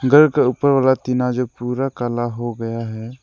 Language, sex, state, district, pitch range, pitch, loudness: Hindi, male, Arunachal Pradesh, Lower Dibang Valley, 120-130 Hz, 125 Hz, -19 LUFS